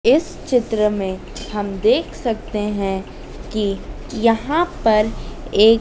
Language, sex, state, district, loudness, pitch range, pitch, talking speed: Hindi, female, Madhya Pradesh, Dhar, -20 LUFS, 205-230 Hz, 215 Hz, 115 wpm